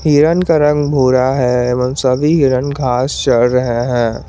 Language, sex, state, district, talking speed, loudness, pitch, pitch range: Hindi, male, Jharkhand, Garhwa, 170 wpm, -13 LUFS, 130 Hz, 125-145 Hz